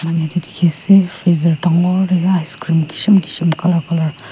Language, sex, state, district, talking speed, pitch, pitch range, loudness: Nagamese, female, Nagaland, Kohima, 140 wpm, 170 Hz, 160-180 Hz, -15 LUFS